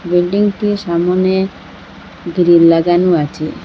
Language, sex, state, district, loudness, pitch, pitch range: Bengali, female, Assam, Hailakandi, -13 LUFS, 175 Hz, 170-190 Hz